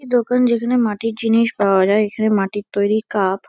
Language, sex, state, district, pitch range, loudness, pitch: Bengali, female, West Bengal, Kolkata, 200-235 Hz, -17 LUFS, 215 Hz